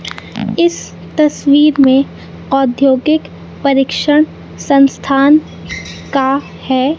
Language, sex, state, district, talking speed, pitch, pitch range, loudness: Hindi, female, Madhya Pradesh, Katni, 70 wpm, 275 Hz, 270-300 Hz, -12 LUFS